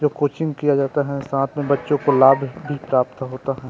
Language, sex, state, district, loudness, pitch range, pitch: Chhattisgarhi, male, Chhattisgarh, Rajnandgaon, -20 LUFS, 135-145 Hz, 140 Hz